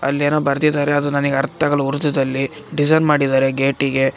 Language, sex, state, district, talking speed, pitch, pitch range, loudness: Kannada, male, Karnataka, Raichur, 160 wpm, 140 Hz, 135-150 Hz, -17 LUFS